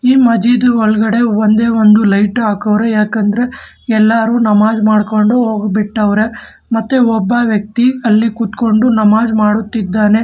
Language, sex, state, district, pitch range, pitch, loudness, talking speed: Kannada, male, Karnataka, Bangalore, 215-235 Hz, 220 Hz, -12 LUFS, 110 wpm